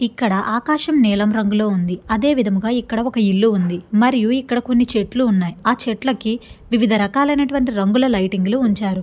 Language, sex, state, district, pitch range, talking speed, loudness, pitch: Telugu, female, Andhra Pradesh, Chittoor, 205-245 Hz, 155 wpm, -18 LUFS, 225 Hz